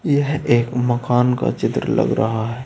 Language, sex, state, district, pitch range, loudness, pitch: Hindi, male, Uttar Pradesh, Saharanpur, 120-145 Hz, -19 LUFS, 125 Hz